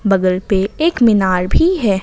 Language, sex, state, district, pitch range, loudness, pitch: Hindi, female, Jharkhand, Ranchi, 190-230 Hz, -14 LUFS, 195 Hz